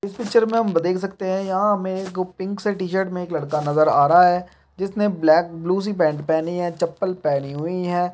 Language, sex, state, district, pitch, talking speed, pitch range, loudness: Hindi, male, Chhattisgarh, Raigarh, 180 Hz, 230 wpm, 165-195 Hz, -21 LUFS